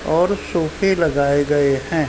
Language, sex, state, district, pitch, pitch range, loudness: Hindi, male, Uttar Pradesh, Ghazipur, 155 Hz, 145-170 Hz, -18 LUFS